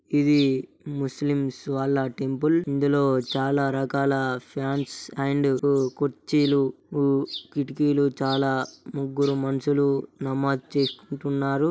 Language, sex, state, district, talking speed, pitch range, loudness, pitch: Telugu, male, Telangana, Nalgonda, 85 wpm, 135-145 Hz, -25 LUFS, 140 Hz